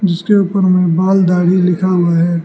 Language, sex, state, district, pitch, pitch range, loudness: Hindi, male, Arunachal Pradesh, Lower Dibang Valley, 180 Hz, 175-190 Hz, -12 LUFS